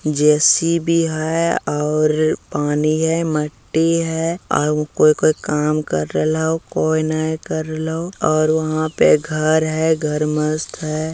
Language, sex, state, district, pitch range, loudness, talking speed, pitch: Hindi, male, Bihar, Begusarai, 150-160 Hz, -18 LUFS, 125 wpm, 155 Hz